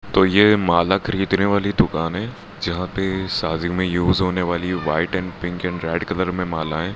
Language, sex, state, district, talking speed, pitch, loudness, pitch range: Hindi, male, Rajasthan, Bikaner, 190 wpm, 90 Hz, -20 LUFS, 85-95 Hz